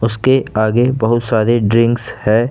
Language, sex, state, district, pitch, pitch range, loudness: Hindi, male, Jharkhand, Ranchi, 115 Hz, 110-120 Hz, -14 LUFS